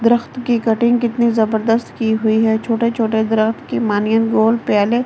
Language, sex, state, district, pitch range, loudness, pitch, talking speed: Hindi, female, Delhi, New Delhi, 220-235 Hz, -16 LUFS, 225 Hz, 180 wpm